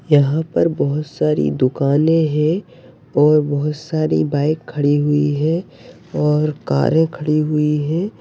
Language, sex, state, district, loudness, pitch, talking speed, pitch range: Hindi, male, Bihar, Bhagalpur, -17 LUFS, 150 Hz, 130 wpm, 145-155 Hz